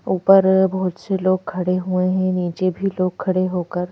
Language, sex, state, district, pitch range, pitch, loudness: Hindi, female, Madhya Pradesh, Bhopal, 180-190 Hz, 185 Hz, -19 LUFS